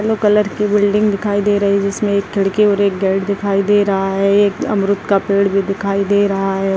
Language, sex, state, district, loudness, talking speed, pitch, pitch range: Hindi, female, Chhattisgarh, Kabirdham, -15 LUFS, 230 wpm, 200 Hz, 195-205 Hz